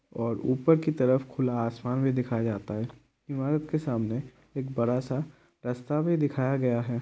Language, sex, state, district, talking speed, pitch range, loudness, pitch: Hindi, male, Bihar, Kishanganj, 160 wpm, 120-140 Hz, -29 LUFS, 130 Hz